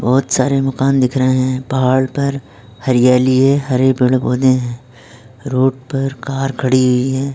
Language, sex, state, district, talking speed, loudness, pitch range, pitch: Hindi, male, Uttarakhand, Tehri Garhwal, 145 wpm, -15 LUFS, 125-135 Hz, 130 Hz